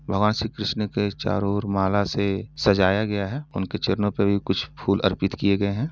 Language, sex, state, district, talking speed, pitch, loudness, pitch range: Hindi, male, Uttar Pradesh, Etah, 215 wpm, 100 Hz, -24 LUFS, 100-105 Hz